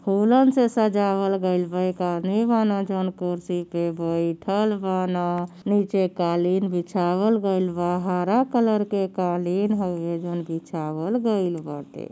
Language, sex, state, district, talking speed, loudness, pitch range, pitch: Bhojpuri, female, Uttar Pradesh, Gorakhpur, 135 wpm, -23 LUFS, 175-205 Hz, 185 Hz